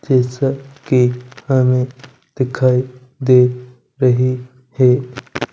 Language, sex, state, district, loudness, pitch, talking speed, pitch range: Hindi, male, Punjab, Kapurthala, -16 LUFS, 130 Hz, 75 wpm, 125-135 Hz